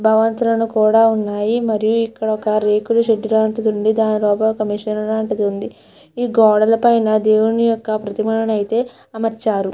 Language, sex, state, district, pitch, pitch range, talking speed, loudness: Telugu, female, Andhra Pradesh, Chittoor, 220 Hz, 215-225 Hz, 150 wpm, -17 LUFS